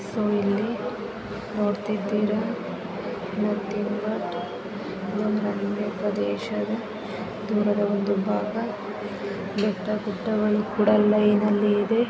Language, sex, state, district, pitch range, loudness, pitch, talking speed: Kannada, female, Karnataka, Gulbarga, 205-215 Hz, -26 LUFS, 210 Hz, 70 wpm